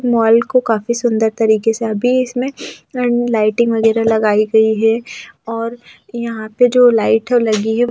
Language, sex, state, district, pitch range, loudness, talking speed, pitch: Hindi, female, Delhi, New Delhi, 220-245 Hz, -15 LUFS, 175 wpm, 230 Hz